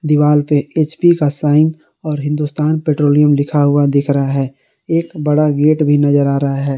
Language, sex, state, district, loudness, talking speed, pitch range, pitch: Hindi, male, Jharkhand, Garhwa, -14 LUFS, 195 wpm, 145-155 Hz, 150 Hz